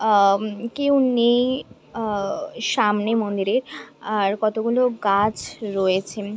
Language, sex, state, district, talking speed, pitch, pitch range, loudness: Bengali, female, West Bengal, Jhargram, 95 wpm, 215 Hz, 200-235 Hz, -21 LUFS